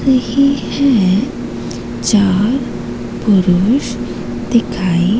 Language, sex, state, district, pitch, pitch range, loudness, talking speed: Hindi, female, Madhya Pradesh, Katni, 210 Hz, 185-260 Hz, -15 LUFS, 60 wpm